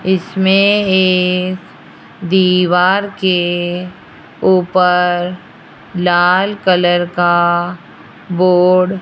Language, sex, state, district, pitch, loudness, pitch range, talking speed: Hindi, female, Rajasthan, Jaipur, 180 Hz, -13 LUFS, 175-190 Hz, 65 wpm